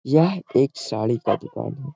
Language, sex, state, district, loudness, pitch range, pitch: Hindi, male, Bihar, Gaya, -23 LUFS, 115-150 Hz, 135 Hz